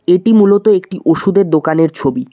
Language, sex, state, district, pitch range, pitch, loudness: Bengali, male, West Bengal, Cooch Behar, 160-200 Hz, 180 Hz, -12 LUFS